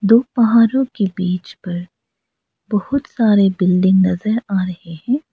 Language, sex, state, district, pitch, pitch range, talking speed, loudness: Hindi, female, Arunachal Pradesh, Lower Dibang Valley, 200 Hz, 185-230 Hz, 135 wpm, -17 LUFS